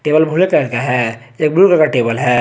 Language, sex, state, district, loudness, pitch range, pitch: Hindi, male, Jharkhand, Garhwa, -14 LUFS, 120-155 Hz, 135 Hz